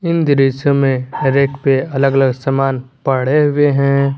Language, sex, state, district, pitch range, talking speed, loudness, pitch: Hindi, male, Jharkhand, Garhwa, 135-145 Hz, 145 wpm, -15 LUFS, 135 Hz